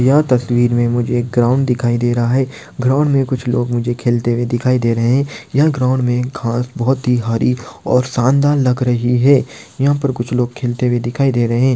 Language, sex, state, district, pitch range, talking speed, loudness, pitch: Hindi, male, Maharashtra, Aurangabad, 120-130 Hz, 210 wpm, -16 LUFS, 125 Hz